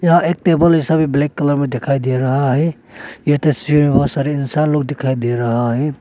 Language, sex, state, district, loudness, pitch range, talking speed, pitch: Hindi, male, Arunachal Pradesh, Longding, -16 LUFS, 130-155 Hz, 220 wpm, 145 Hz